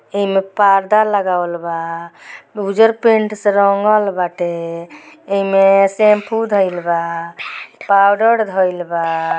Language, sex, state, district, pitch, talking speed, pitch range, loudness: Bhojpuri, female, Bihar, Gopalganj, 195 Hz, 100 wpm, 170-210 Hz, -15 LUFS